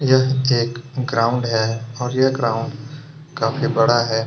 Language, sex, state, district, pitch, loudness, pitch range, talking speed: Hindi, male, Chhattisgarh, Kabirdham, 125 Hz, -19 LUFS, 115-135 Hz, 140 wpm